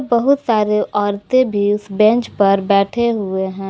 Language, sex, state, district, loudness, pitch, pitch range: Hindi, female, Jharkhand, Garhwa, -16 LUFS, 210 Hz, 200-235 Hz